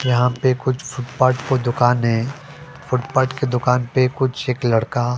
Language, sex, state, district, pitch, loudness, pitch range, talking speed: Hindi, male, Delhi, New Delhi, 125 Hz, -19 LUFS, 120-130 Hz, 195 wpm